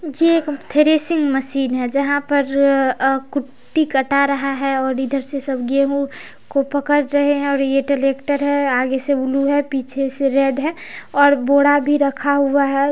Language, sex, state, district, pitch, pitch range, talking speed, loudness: Maithili, female, Bihar, Samastipur, 280 Hz, 270-285 Hz, 165 wpm, -18 LUFS